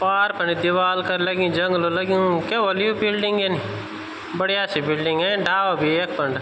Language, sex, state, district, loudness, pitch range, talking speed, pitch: Garhwali, male, Uttarakhand, Tehri Garhwal, -21 LUFS, 170-195 Hz, 170 wpm, 185 Hz